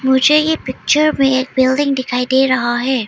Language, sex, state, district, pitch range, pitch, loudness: Hindi, female, Arunachal Pradesh, Lower Dibang Valley, 260-285 Hz, 265 Hz, -14 LUFS